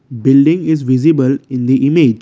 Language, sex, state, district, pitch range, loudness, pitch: English, male, Assam, Kamrup Metropolitan, 130-155 Hz, -12 LUFS, 135 Hz